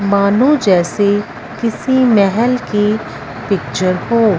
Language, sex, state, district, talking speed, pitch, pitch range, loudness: Hindi, female, Punjab, Fazilka, 95 wpm, 210 Hz, 200-235 Hz, -14 LUFS